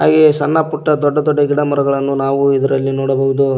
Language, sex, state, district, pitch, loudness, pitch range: Kannada, male, Karnataka, Koppal, 140 Hz, -14 LUFS, 135-150 Hz